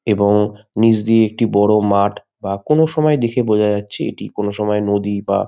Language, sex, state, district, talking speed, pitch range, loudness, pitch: Bengali, male, West Bengal, Malda, 175 wpm, 100-115 Hz, -16 LUFS, 105 Hz